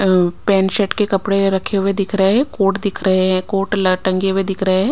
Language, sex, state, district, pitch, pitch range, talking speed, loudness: Hindi, female, Himachal Pradesh, Shimla, 195 Hz, 190-200 Hz, 245 wpm, -16 LUFS